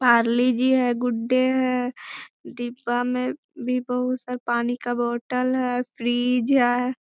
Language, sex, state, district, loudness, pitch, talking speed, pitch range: Hindi, female, Bihar, Begusarai, -23 LUFS, 250 Hz, 145 wpm, 240-255 Hz